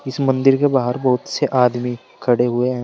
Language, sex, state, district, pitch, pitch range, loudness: Hindi, male, Uttar Pradesh, Saharanpur, 125 Hz, 125-135 Hz, -18 LUFS